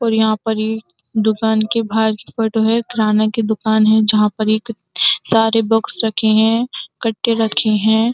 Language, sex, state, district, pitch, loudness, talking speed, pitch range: Hindi, female, Uttar Pradesh, Jyotiba Phule Nagar, 220 Hz, -16 LUFS, 170 wpm, 215-225 Hz